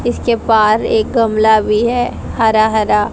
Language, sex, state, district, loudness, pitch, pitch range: Hindi, female, Haryana, Jhajjar, -13 LUFS, 220 Hz, 215-230 Hz